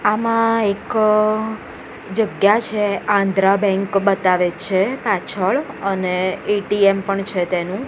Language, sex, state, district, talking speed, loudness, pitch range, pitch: Gujarati, female, Gujarat, Gandhinagar, 105 wpm, -18 LUFS, 190-215 Hz, 200 Hz